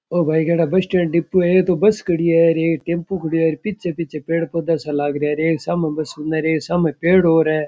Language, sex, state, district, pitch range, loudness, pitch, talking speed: Rajasthani, male, Rajasthan, Churu, 160-175 Hz, -18 LUFS, 165 Hz, 220 wpm